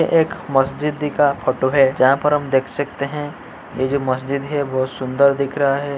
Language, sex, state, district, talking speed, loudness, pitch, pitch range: Hindi, male, Uttar Pradesh, Jyotiba Phule Nagar, 210 wpm, -19 LUFS, 140 Hz, 135-145 Hz